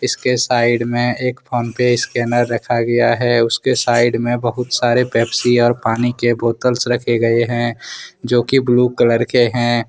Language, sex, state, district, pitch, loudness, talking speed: Hindi, male, Jharkhand, Ranchi, 120 Hz, -16 LUFS, 175 wpm